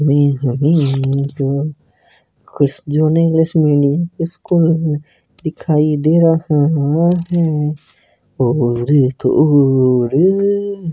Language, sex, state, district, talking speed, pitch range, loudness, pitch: Hindi, male, Rajasthan, Nagaur, 70 wpm, 140-165 Hz, -15 LUFS, 150 Hz